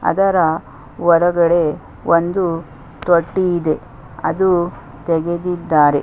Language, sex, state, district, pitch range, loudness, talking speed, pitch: Kannada, female, Karnataka, Chamarajanagar, 155-175 Hz, -17 LUFS, 70 wpm, 170 Hz